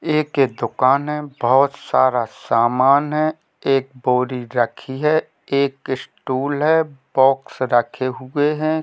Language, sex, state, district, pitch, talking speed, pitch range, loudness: Hindi, male, Jharkhand, Jamtara, 135 Hz, 120 wpm, 130-150 Hz, -19 LUFS